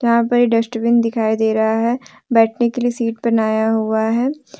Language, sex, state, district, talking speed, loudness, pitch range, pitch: Hindi, female, Jharkhand, Deoghar, 195 wpm, -17 LUFS, 220-235 Hz, 230 Hz